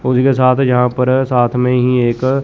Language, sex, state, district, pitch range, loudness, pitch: Hindi, male, Chandigarh, Chandigarh, 125-130 Hz, -13 LUFS, 125 Hz